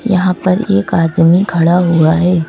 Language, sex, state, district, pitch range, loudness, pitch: Hindi, female, Madhya Pradesh, Bhopal, 165-185 Hz, -12 LUFS, 175 Hz